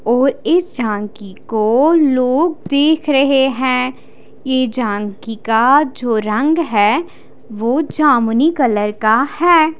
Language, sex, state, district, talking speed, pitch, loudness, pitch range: Hindi, female, Odisha, Khordha, 115 wpm, 255 Hz, -15 LUFS, 225-295 Hz